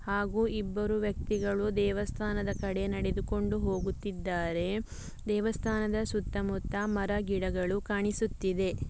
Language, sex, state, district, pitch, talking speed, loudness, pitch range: Kannada, female, Karnataka, Dakshina Kannada, 205 Hz, 90 wpm, -32 LUFS, 195-210 Hz